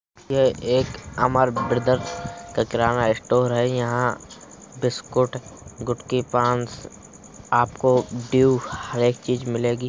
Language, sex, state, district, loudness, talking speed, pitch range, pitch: Hindi, male, Uttar Pradesh, Hamirpur, -22 LUFS, 125 wpm, 120-125 Hz, 125 Hz